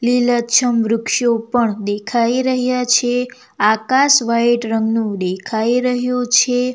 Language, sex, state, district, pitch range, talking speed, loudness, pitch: Gujarati, female, Gujarat, Valsad, 225-250 Hz, 105 wpm, -16 LUFS, 240 Hz